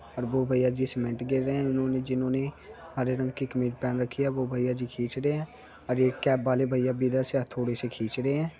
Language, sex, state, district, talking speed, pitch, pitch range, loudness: Hindi, male, Uttar Pradesh, Jyotiba Phule Nagar, 250 wpm, 130 Hz, 125-135 Hz, -28 LUFS